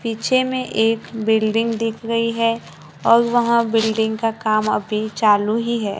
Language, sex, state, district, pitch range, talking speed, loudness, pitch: Hindi, female, Maharashtra, Gondia, 220-230 Hz, 160 wpm, -19 LUFS, 225 Hz